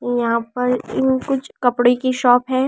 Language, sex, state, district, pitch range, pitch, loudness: Hindi, female, Delhi, New Delhi, 245-260 Hz, 250 Hz, -18 LUFS